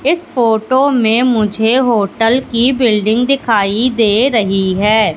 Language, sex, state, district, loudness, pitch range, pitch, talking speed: Hindi, female, Madhya Pradesh, Katni, -13 LUFS, 215-255 Hz, 230 Hz, 130 wpm